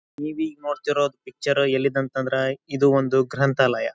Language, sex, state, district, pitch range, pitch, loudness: Kannada, male, Karnataka, Dharwad, 135-145 Hz, 140 Hz, -23 LUFS